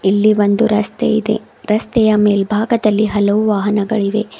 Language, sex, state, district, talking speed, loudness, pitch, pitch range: Kannada, female, Karnataka, Bidar, 110 wpm, -15 LUFS, 215 Hz, 205-215 Hz